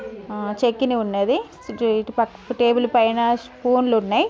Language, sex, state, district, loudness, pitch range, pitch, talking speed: Telugu, female, Telangana, Nalgonda, -21 LUFS, 220-245 Hz, 235 Hz, 100 wpm